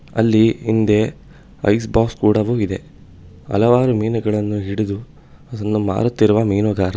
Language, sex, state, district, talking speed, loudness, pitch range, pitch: Kannada, male, Karnataka, Bangalore, 105 wpm, -17 LUFS, 100-115 Hz, 105 Hz